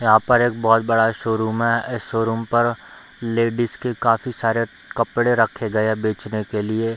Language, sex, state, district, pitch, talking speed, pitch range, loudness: Hindi, male, Bihar, Darbhanga, 115 Hz, 190 wpm, 110-120 Hz, -20 LUFS